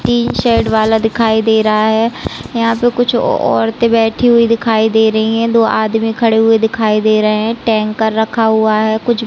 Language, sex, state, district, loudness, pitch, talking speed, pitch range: Hindi, female, Chhattisgarh, Raigarh, -12 LUFS, 225 Hz, 195 wpm, 220-230 Hz